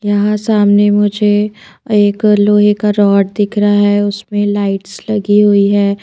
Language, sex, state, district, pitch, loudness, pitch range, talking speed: Hindi, female, Himachal Pradesh, Shimla, 205 Hz, -12 LUFS, 205-210 Hz, 150 wpm